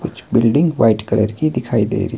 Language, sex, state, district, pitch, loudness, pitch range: Hindi, male, Himachal Pradesh, Shimla, 115 Hz, -16 LUFS, 110-120 Hz